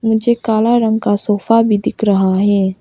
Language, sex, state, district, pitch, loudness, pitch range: Hindi, female, Arunachal Pradesh, Papum Pare, 220 Hz, -14 LUFS, 205-225 Hz